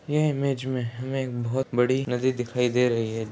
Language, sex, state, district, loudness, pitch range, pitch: Hindi, male, Bihar, Saharsa, -26 LUFS, 120-130 Hz, 125 Hz